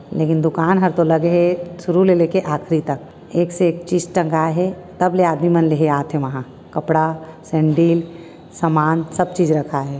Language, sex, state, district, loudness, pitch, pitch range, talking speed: Chhattisgarhi, female, Chhattisgarh, Raigarh, -18 LUFS, 165 Hz, 155-175 Hz, 185 wpm